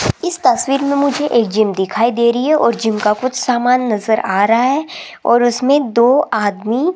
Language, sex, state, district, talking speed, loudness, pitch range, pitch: Hindi, female, Rajasthan, Jaipur, 205 wpm, -15 LUFS, 220-280 Hz, 245 Hz